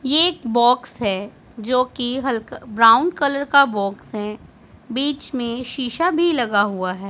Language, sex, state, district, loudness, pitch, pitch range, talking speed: Hindi, female, Punjab, Pathankot, -19 LUFS, 245 Hz, 215-280 Hz, 160 wpm